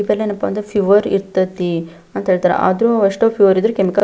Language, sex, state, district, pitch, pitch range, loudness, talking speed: Kannada, female, Karnataka, Belgaum, 195 Hz, 185-210 Hz, -16 LUFS, 180 wpm